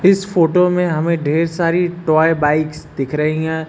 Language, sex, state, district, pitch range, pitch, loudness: Hindi, male, Uttar Pradesh, Lucknow, 155-175 Hz, 165 Hz, -16 LUFS